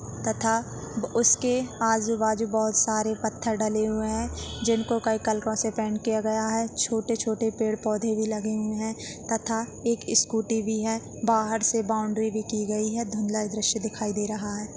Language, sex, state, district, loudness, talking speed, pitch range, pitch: Hindi, female, Chhattisgarh, Jashpur, -26 LUFS, 180 wpm, 215-225 Hz, 220 Hz